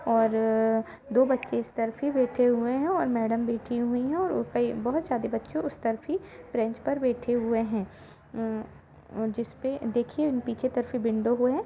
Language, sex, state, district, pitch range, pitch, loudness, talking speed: Hindi, female, Jharkhand, Jamtara, 225-255 Hz, 240 Hz, -28 LUFS, 170 wpm